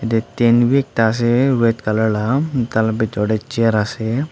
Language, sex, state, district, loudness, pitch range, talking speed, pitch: Nagamese, male, Nagaland, Dimapur, -17 LUFS, 110-125 Hz, 165 wpm, 115 Hz